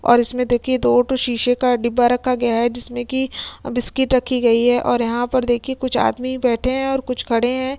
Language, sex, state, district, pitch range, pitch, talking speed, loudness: Hindi, female, Uttar Pradesh, Jyotiba Phule Nagar, 240-260 Hz, 245 Hz, 225 wpm, -19 LUFS